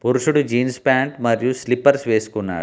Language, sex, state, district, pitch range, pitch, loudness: Telugu, male, Telangana, Hyderabad, 115-130 Hz, 125 Hz, -19 LUFS